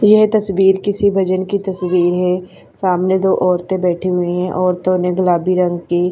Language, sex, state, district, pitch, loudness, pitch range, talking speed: Hindi, female, Haryana, Charkhi Dadri, 185 Hz, -16 LUFS, 180-190 Hz, 175 wpm